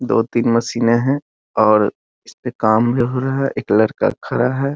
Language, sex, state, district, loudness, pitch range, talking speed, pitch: Hindi, male, Bihar, Muzaffarpur, -17 LUFS, 115-130 Hz, 200 wpm, 120 Hz